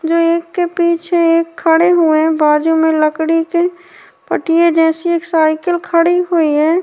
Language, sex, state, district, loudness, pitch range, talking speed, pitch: Hindi, female, Uttar Pradesh, Jyotiba Phule Nagar, -13 LUFS, 320-345 Hz, 165 wpm, 335 Hz